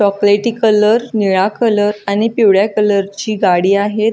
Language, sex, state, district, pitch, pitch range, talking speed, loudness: Marathi, female, Maharashtra, Solapur, 210 Hz, 200-220 Hz, 145 wpm, -13 LUFS